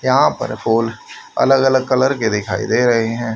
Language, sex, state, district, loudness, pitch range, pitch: Hindi, male, Haryana, Rohtak, -16 LUFS, 115-130 Hz, 115 Hz